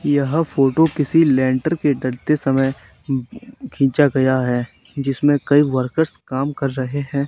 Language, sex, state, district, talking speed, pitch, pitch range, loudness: Hindi, male, Haryana, Charkhi Dadri, 140 wpm, 140 Hz, 130-150 Hz, -18 LUFS